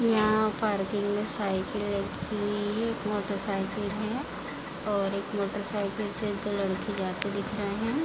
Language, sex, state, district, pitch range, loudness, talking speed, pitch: Hindi, female, Uttar Pradesh, Hamirpur, 200-215 Hz, -30 LUFS, 140 wpm, 205 Hz